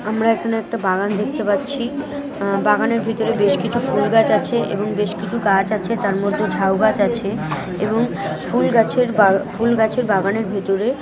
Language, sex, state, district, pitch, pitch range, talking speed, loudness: Bengali, female, West Bengal, North 24 Parganas, 215 Hz, 200-230 Hz, 175 wpm, -19 LUFS